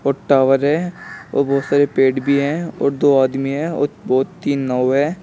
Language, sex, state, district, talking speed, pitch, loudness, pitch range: Hindi, male, Uttar Pradesh, Shamli, 195 wpm, 140 Hz, -17 LUFS, 135-145 Hz